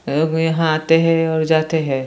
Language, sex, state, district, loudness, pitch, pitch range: Hindi, male, Jharkhand, Jamtara, -17 LUFS, 160 Hz, 155-165 Hz